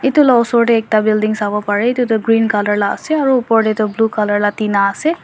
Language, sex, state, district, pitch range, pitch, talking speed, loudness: Nagamese, female, Nagaland, Dimapur, 210-240 Hz, 220 Hz, 265 wpm, -14 LUFS